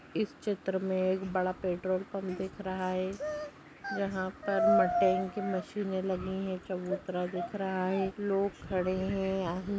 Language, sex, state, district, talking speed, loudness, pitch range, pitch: Hindi, female, Maharashtra, Aurangabad, 145 wpm, -32 LUFS, 185-195 Hz, 190 Hz